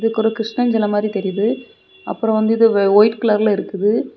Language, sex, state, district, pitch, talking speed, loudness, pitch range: Tamil, female, Tamil Nadu, Kanyakumari, 215 Hz, 170 wpm, -17 LUFS, 210-225 Hz